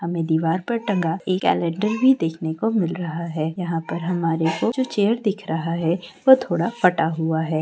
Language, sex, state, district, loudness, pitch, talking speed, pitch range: Hindi, female, Chhattisgarh, Korba, -21 LUFS, 170 Hz, 250 wpm, 165-205 Hz